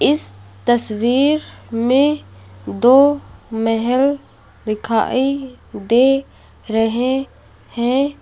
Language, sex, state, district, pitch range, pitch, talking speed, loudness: Hindi, female, Uttar Pradesh, Lucknow, 220-270 Hz, 240 Hz, 65 wpm, -17 LUFS